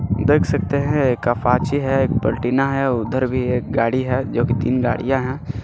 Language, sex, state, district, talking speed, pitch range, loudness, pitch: Hindi, male, Jharkhand, Garhwa, 170 wpm, 120-135 Hz, -19 LUFS, 125 Hz